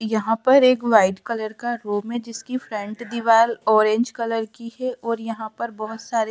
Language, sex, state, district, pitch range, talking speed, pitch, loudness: Hindi, female, Bihar, Kaimur, 220-235 Hz, 200 wpm, 230 Hz, -21 LUFS